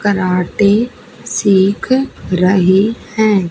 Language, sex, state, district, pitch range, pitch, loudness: Hindi, female, Haryana, Charkhi Dadri, 185-220 Hz, 200 Hz, -14 LUFS